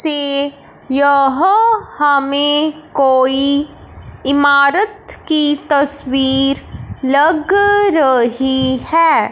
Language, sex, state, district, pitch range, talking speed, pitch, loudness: Hindi, male, Punjab, Fazilka, 275-310 Hz, 65 wpm, 285 Hz, -13 LUFS